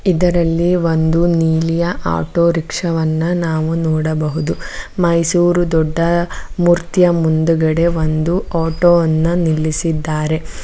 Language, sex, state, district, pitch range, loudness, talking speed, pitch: Kannada, female, Karnataka, Mysore, 160-175 Hz, -15 LUFS, 90 wpm, 165 Hz